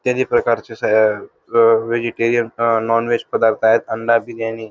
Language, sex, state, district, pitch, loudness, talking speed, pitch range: Marathi, male, Maharashtra, Dhule, 115 Hz, -17 LUFS, 125 wpm, 110-115 Hz